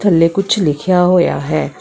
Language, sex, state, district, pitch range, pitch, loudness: Punjabi, female, Karnataka, Bangalore, 165-195 Hz, 180 Hz, -14 LUFS